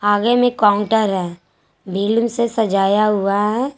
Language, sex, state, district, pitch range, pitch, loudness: Hindi, female, Jharkhand, Garhwa, 195-225 Hz, 205 Hz, -17 LUFS